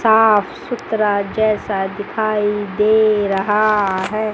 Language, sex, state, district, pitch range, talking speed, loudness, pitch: Hindi, female, Chandigarh, Chandigarh, 205-215 Hz, 95 wpm, -17 LUFS, 210 Hz